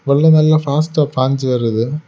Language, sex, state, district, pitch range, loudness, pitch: Tamil, male, Tamil Nadu, Kanyakumari, 130-155 Hz, -14 LUFS, 145 Hz